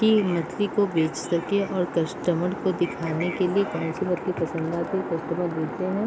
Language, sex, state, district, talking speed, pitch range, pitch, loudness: Hindi, female, Bihar, Madhepura, 205 wpm, 165-190 Hz, 175 Hz, -25 LUFS